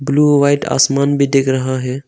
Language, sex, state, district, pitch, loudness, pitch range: Hindi, male, Arunachal Pradesh, Longding, 140 Hz, -14 LUFS, 130-145 Hz